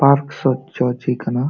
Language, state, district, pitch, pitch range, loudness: Santali, Jharkhand, Sahebganj, 130 Hz, 125-140 Hz, -19 LUFS